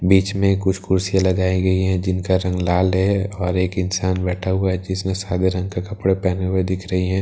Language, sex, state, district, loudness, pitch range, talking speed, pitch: Hindi, male, Bihar, Katihar, -20 LUFS, 90-95 Hz, 235 wpm, 95 Hz